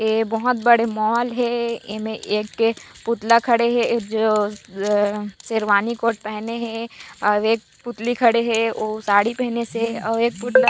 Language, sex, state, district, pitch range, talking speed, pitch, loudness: Chhattisgarhi, female, Chhattisgarh, Raigarh, 215-235 Hz, 155 wpm, 230 Hz, -20 LUFS